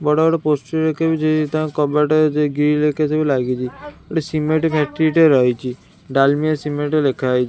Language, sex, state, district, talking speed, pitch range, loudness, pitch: Odia, female, Odisha, Khordha, 170 wpm, 140-155 Hz, -18 LUFS, 150 Hz